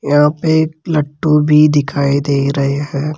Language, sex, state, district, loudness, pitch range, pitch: Hindi, male, Rajasthan, Jaipur, -14 LUFS, 140-155 Hz, 150 Hz